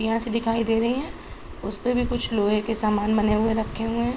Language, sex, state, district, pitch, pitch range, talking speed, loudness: Hindi, male, Bihar, Araria, 225 Hz, 215-230 Hz, 245 wpm, -23 LUFS